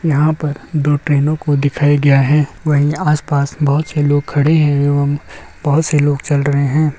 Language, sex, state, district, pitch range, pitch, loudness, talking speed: Hindi, male, Bihar, Darbhanga, 145-150 Hz, 145 Hz, -15 LUFS, 190 wpm